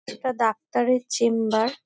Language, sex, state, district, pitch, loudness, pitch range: Bengali, female, West Bengal, North 24 Parganas, 235 Hz, -23 LUFS, 225-250 Hz